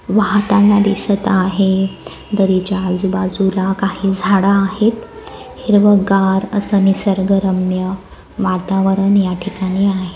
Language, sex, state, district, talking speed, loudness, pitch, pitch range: Marathi, female, Maharashtra, Aurangabad, 95 wpm, -15 LUFS, 195 Hz, 190-200 Hz